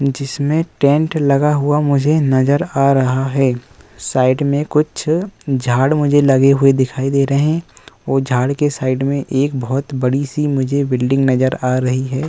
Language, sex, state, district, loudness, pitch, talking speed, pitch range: Hindi, male, Uttar Pradesh, Muzaffarnagar, -16 LUFS, 140 Hz, 170 wpm, 130-145 Hz